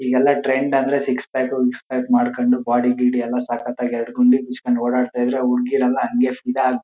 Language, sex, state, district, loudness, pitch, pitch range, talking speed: Kannada, male, Karnataka, Shimoga, -19 LUFS, 125 Hz, 125-130 Hz, 195 wpm